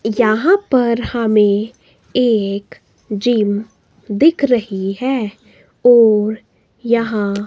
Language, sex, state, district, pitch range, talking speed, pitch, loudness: Hindi, female, Himachal Pradesh, Shimla, 205-245 Hz, 80 wpm, 220 Hz, -15 LUFS